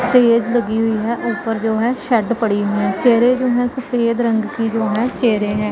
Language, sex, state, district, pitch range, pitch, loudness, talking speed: Hindi, female, Punjab, Pathankot, 220-245 Hz, 230 Hz, -17 LUFS, 210 wpm